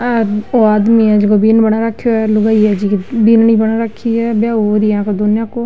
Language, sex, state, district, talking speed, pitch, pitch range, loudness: Marwari, female, Rajasthan, Nagaur, 245 wpm, 220 Hz, 210-230 Hz, -12 LUFS